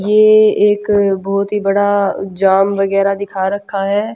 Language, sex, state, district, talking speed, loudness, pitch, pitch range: Hindi, female, Haryana, Jhajjar, 145 wpm, -14 LUFS, 200 Hz, 195-205 Hz